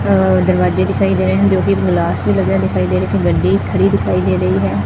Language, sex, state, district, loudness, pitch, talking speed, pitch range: Punjabi, female, Punjab, Fazilka, -14 LUFS, 95 Hz, 270 wpm, 90-100 Hz